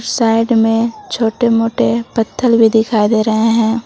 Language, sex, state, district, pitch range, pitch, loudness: Hindi, female, Jharkhand, Palamu, 220-230 Hz, 225 Hz, -14 LUFS